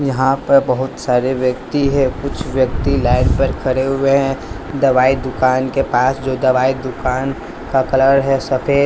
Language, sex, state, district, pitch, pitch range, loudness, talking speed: Hindi, male, Bihar, West Champaran, 130 Hz, 130-135 Hz, -16 LUFS, 160 wpm